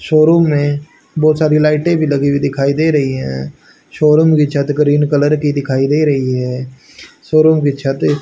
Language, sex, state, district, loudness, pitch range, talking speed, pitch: Hindi, male, Haryana, Rohtak, -13 LUFS, 140-155 Hz, 190 wpm, 145 Hz